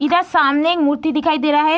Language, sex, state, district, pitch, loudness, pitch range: Hindi, female, Bihar, Madhepura, 310 Hz, -16 LUFS, 295-330 Hz